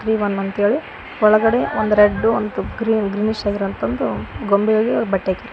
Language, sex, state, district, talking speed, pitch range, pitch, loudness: Kannada, female, Karnataka, Koppal, 75 wpm, 200-220 Hz, 210 Hz, -18 LUFS